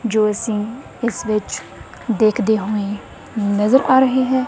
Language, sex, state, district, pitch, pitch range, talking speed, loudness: Punjabi, female, Punjab, Kapurthala, 220 Hz, 210-240 Hz, 135 wpm, -18 LUFS